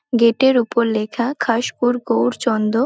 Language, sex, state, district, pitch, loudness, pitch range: Bengali, female, West Bengal, Dakshin Dinajpur, 235 Hz, -18 LUFS, 220-245 Hz